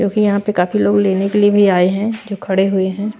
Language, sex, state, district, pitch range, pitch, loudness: Hindi, female, Chhattisgarh, Raipur, 190-210 Hz, 200 Hz, -15 LUFS